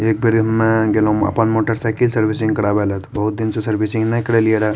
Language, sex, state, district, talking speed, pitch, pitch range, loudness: Maithili, male, Bihar, Madhepura, 225 wpm, 110 Hz, 105-110 Hz, -17 LUFS